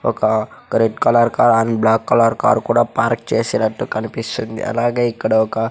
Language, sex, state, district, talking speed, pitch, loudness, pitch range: Telugu, male, Andhra Pradesh, Sri Satya Sai, 155 wpm, 115 Hz, -17 LUFS, 110-120 Hz